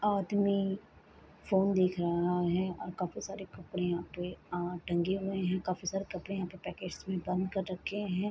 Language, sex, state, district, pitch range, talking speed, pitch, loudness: Hindi, female, Bihar, Bhagalpur, 180-195 Hz, 195 wpm, 185 Hz, -34 LUFS